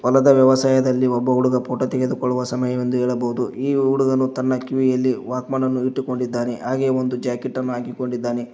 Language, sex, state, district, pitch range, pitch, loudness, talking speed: Kannada, male, Karnataka, Koppal, 125-130 Hz, 130 Hz, -20 LUFS, 155 wpm